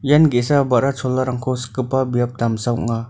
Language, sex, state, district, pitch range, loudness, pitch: Garo, male, Meghalaya, North Garo Hills, 120-130 Hz, -19 LUFS, 125 Hz